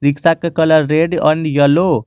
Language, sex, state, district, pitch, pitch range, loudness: Hindi, male, Jharkhand, Garhwa, 155 Hz, 150-165 Hz, -13 LUFS